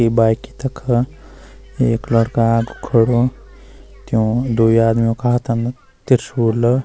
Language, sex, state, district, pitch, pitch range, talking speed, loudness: Garhwali, male, Uttarakhand, Uttarkashi, 120 Hz, 115-125 Hz, 115 wpm, -17 LUFS